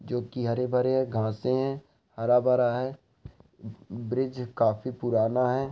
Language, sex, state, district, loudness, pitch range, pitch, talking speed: Hindi, male, Bihar, Saharsa, -27 LUFS, 115-130 Hz, 125 Hz, 145 wpm